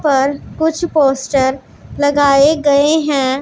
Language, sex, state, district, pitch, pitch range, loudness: Hindi, female, Punjab, Pathankot, 285 Hz, 270-300 Hz, -14 LUFS